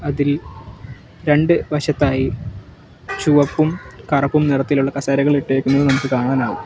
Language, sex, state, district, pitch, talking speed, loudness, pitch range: Malayalam, male, Kerala, Kollam, 140 Hz, 90 wpm, -17 LUFS, 130-145 Hz